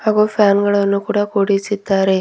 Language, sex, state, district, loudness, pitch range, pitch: Kannada, female, Karnataka, Bidar, -16 LUFS, 200-210 Hz, 200 Hz